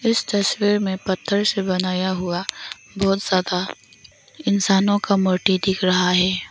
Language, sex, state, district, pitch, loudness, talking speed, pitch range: Hindi, female, Arunachal Pradesh, Longding, 190 Hz, -20 LUFS, 140 wpm, 185-205 Hz